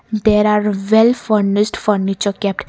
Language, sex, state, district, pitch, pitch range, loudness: English, female, Karnataka, Bangalore, 210 Hz, 200-215 Hz, -15 LUFS